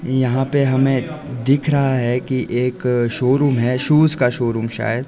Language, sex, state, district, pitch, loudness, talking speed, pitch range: Hindi, male, Himachal Pradesh, Shimla, 130 Hz, -17 LUFS, 165 wpm, 125-140 Hz